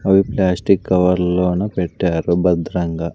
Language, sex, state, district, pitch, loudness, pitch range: Telugu, male, Andhra Pradesh, Sri Satya Sai, 90 Hz, -17 LUFS, 85-95 Hz